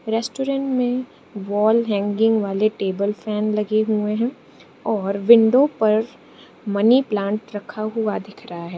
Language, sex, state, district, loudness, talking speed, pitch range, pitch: Hindi, female, Arunachal Pradesh, Lower Dibang Valley, -20 LUFS, 135 wpm, 205-235 Hz, 215 Hz